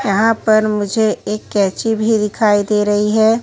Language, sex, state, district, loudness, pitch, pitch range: Hindi, male, Chhattisgarh, Raipur, -15 LUFS, 215 Hz, 205-220 Hz